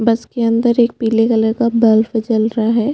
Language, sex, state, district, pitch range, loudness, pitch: Hindi, female, Chhattisgarh, Bastar, 225-235 Hz, -15 LUFS, 230 Hz